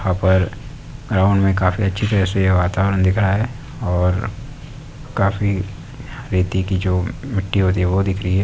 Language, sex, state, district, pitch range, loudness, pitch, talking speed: Hindi, male, Uttar Pradesh, Deoria, 95-125 Hz, -19 LUFS, 95 Hz, 170 wpm